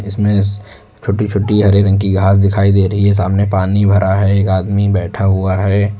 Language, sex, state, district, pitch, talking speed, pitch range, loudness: Hindi, male, Uttar Pradesh, Lucknow, 100 Hz, 200 wpm, 95-100 Hz, -13 LUFS